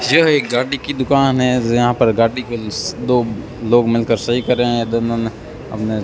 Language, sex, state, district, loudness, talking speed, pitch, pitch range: Hindi, male, Rajasthan, Bikaner, -17 LUFS, 220 wpm, 120 Hz, 115-125 Hz